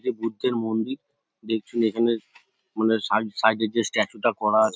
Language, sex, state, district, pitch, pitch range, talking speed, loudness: Bengali, male, West Bengal, North 24 Parganas, 110 Hz, 110-115 Hz, 150 wpm, -24 LUFS